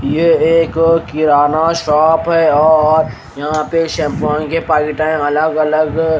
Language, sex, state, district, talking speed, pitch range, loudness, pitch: Hindi, male, Haryana, Rohtak, 135 wpm, 150-165 Hz, -13 LUFS, 155 Hz